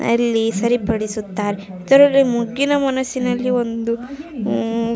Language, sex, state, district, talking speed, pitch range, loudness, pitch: Kannada, female, Karnataka, Raichur, 85 wpm, 225-260 Hz, -18 LUFS, 235 Hz